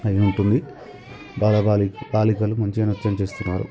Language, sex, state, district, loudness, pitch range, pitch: Telugu, male, Telangana, Karimnagar, -21 LUFS, 100-110 Hz, 105 Hz